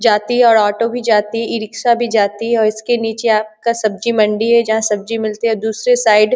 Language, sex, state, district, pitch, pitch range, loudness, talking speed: Hindi, female, Bihar, Bhagalpur, 225 Hz, 215-235 Hz, -15 LUFS, 225 wpm